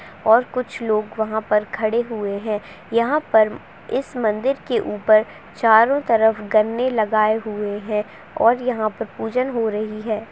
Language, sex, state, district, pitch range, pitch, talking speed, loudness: Hindi, female, Uttar Pradesh, Budaun, 215-235 Hz, 220 Hz, 155 wpm, -20 LUFS